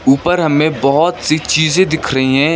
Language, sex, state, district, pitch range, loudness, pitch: Hindi, male, West Bengal, Darjeeling, 135-165 Hz, -13 LUFS, 155 Hz